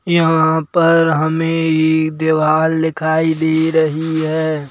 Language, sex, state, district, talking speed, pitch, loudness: Hindi, male, Madhya Pradesh, Bhopal, 115 wpm, 160 Hz, -15 LUFS